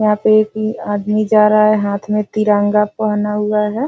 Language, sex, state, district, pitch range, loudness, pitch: Hindi, female, Bihar, Jahanabad, 210-215 Hz, -15 LUFS, 210 Hz